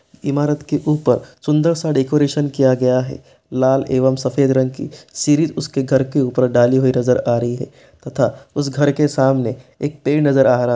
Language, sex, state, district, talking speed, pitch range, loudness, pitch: Hindi, male, Bihar, East Champaran, 195 wpm, 130-145 Hz, -17 LUFS, 135 Hz